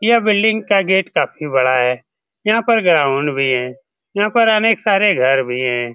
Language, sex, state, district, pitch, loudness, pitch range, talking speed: Hindi, male, Bihar, Saran, 190 Hz, -15 LUFS, 130-220 Hz, 190 wpm